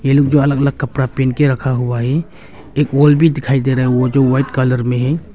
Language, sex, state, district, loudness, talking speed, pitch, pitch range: Hindi, male, Arunachal Pradesh, Longding, -15 LUFS, 280 wpm, 135 Hz, 130-145 Hz